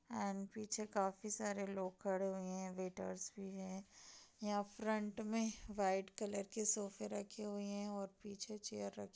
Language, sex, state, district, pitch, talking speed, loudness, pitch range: Hindi, female, Bihar, Darbhanga, 200 Hz, 170 wpm, -44 LUFS, 190-210 Hz